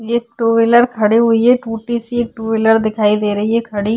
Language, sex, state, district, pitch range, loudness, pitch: Hindi, female, Uttarakhand, Tehri Garhwal, 220-235 Hz, -14 LUFS, 230 Hz